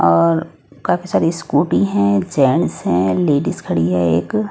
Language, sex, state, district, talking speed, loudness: Hindi, female, Odisha, Nuapada, 135 wpm, -17 LUFS